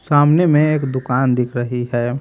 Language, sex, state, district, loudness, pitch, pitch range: Hindi, male, Haryana, Jhajjar, -16 LUFS, 130 Hz, 125-150 Hz